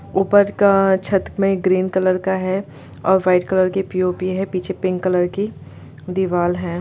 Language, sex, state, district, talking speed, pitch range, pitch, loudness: Hindi, female, Bihar, Gopalganj, 175 wpm, 180-190 Hz, 185 Hz, -18 LUFS